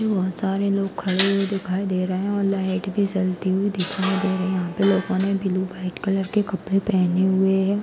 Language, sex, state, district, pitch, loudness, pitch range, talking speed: Hindi, female, Uttar Pradesh, Varanasi, 195 Hz, -22 LUFS, 185-195 Hz, 230 wpm